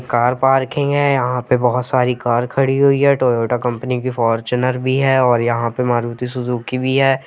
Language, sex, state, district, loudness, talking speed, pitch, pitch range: Hindi, male, Jharkhand, Jamtara, -17 LUFS, 200 wpm, 125 Hz, 120-135 Hz